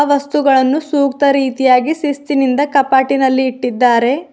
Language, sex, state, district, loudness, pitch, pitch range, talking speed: Kannada, female, Karnataka, Bidar, -13 LUFS, 275 Hz, 260-285 Hz, 85 wpm